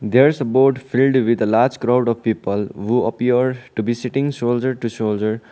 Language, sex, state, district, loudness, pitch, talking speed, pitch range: English, male, Sikkim, Gangtok, -18 LUFS, 120 Hz, 205 wpm, 110-130 Hz